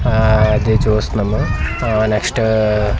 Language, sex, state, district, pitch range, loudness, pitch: Telugu, male, Andhra Pradesh, Manyam, 105-110 Hz, -15 LUFS, 110 Hz